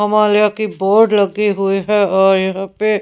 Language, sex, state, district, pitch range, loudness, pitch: Hindi, female, Punjab, Pathankot, 195-210 Hz, -14 LUFS, 205 Hz